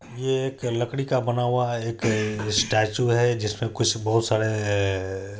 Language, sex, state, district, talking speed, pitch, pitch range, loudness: Hindi, male, Bihar, Supaul, 155 wpm, 115 Hz, 105-120 Hz, -24 LUFS